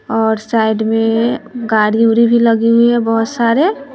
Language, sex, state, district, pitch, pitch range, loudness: Hindi, male, Bihar, West Champaran, 230 Hz, 225-235 Hz, -13 LUFS